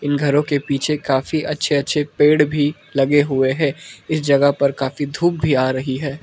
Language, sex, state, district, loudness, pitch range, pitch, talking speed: Hindi, male, Arunachal Pradesh, Lower Dibang Valley, -18 LUFS, 140-150 Hz, 145 Hz, 200 wpm